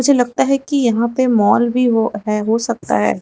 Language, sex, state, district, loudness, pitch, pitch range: Hindi, female, Chhattisgarh, Raipur, -16 LUFS, 235 Hz, 210-250 Hz